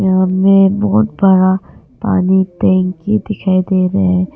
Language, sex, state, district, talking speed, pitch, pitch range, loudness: Hindi, female, Arunachal Pradesh, Longding, 110 wpm, 185 Hz, 185-195 Hz, -13 LUFS